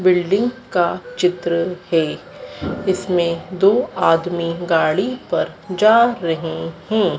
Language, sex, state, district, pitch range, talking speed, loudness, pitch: Hindi, female, Madhya Pradesh, Dhar, 170-215 Hz, 100 wpm, -19 LUFS, 180 Hz